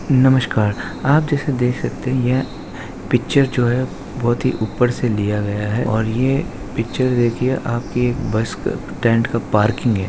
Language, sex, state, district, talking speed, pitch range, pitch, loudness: Hindi, male, Maharashtra, Sindhudurg, 165 wpm, 110-130 Hz, 120 Hz, -19 LUFS